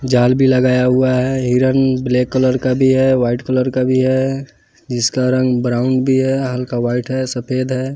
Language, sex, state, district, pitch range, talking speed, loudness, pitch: Hindi, male, Bihar, West Champaran, 125-130 Hz, 195 wpm, -15 LUFS, 130 Hz